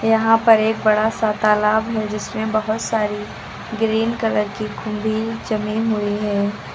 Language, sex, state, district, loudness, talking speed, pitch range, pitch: Hindi, female, Uttar Pradesh, Lucknow, -19 LUFS, 150 wpm, 210-225 Hz, 215 Hz